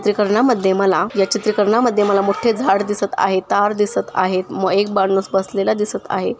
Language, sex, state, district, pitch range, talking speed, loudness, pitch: Marathi, female, Maharashtra, Sindhudurg, 195-210 Hz, 205 wpm, -17 LUFS, 200 Hz